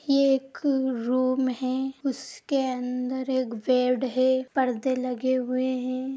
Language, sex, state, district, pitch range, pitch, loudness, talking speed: Hindi, female, Bihar, Madhepura, 255-265 Hz, 260 Hz, -26 LUFS, 125 wpm